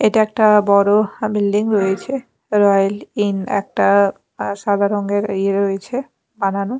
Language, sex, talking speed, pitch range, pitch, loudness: Bengali, female, 125 wpm, 200-210 Hz, 200 Hz, -17 LUFS